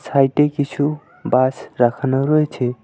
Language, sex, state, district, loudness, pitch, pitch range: Bengali, male, West Bengal, Alipurduar, -18 LUFS, 135 Hz, 125-150 Hz